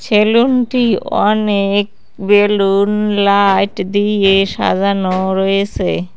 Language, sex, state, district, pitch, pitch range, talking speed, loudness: Bengali, female, West Bengal, Cooch Behar, 200 Hz, 195-210 Hz, 70 wpm, -13 LUFS